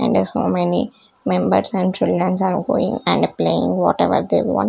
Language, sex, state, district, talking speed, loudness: English, female, Chandigarh, Chandigarh, 190 wpm, -18 LUFS